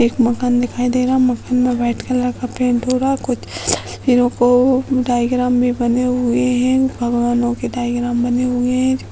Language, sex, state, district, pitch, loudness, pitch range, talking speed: Hindi, female, Uttar Pradesh, Hamirpur, 250 Hz, -17 LUFS, 245-255 Hz, 170 wpm